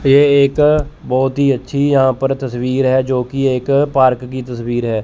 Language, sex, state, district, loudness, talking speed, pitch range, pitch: Hindi, male, Chandigarh, Chandigarh, -15 LUFS, 190 wpm, 125-140 Hz, 135 Hz